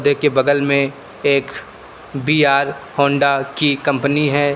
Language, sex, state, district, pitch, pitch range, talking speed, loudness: Hindi, male, Uttar Pradesh, Lucknow, 140 Hz, 140-145 Hz, 105 wpm, -16 LUFS